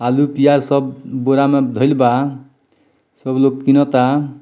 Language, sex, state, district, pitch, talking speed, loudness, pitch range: Bhojpuri, male, Bihar, Muzaffarpur, 135 Hz, 150 wpm, -15 LUFS, 130-140 Hz